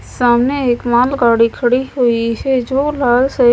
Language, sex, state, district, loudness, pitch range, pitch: Hindi, female, Punjab, Kapurthala, -14 LUFS, 240-265 Hz, 245 Hz